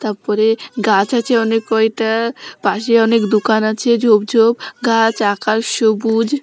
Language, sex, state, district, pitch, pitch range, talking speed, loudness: Bengali, female, West Bengal, North 24 Parganas, 225 Hz, 215-230 Hz, 140 wpm, -15 LUFS